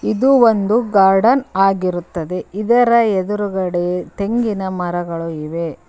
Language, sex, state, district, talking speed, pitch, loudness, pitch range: Kannada, female, Karnataka, Koppal, 90 wpm, 195 Hz, -16 LUFS, 175-220 Hz